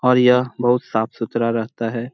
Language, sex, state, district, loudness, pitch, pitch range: Hindi, male, Jharkhand, Jamtara, -19 LUFS, 120 Hz, 115-125 Hz